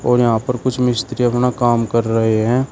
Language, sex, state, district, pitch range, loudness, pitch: Hindi, male, Uttar Pradesh, Shamli, 115-125 Hz, -17 LUFS, 120 Hz